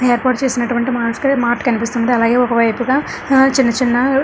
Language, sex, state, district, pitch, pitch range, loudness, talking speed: Telugu, female, Andhra Pradesh, Srikakulam, 245 Hz, 235-265 Hz, -15 LUFS, 155 wpm